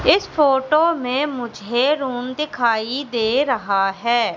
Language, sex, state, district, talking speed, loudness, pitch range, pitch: Hindi, female, Madhya Pradesh, Katni, 125 wpm, -19 LUFS, 235-285 Hz, 250 Hz